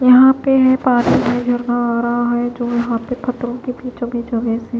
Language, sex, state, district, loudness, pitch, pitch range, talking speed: Hindi, female, Maharashtra, Mumbai Suburban, -16 LUFS, 245 Hz, 240-250 Hz, 165 wpm